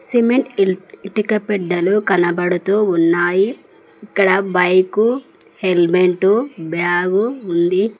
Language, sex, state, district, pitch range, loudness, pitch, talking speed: Telugu, female, Telangana, Mahabubabad, 180-210 Hz, -16 LUFS, 190 Hz, 75 wpm